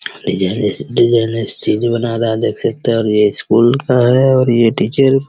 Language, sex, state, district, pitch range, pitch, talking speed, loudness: Hindi, male, Bihar, Araria, 110-125 Hz, 115 Hz, 215 wpm, -14 LUFS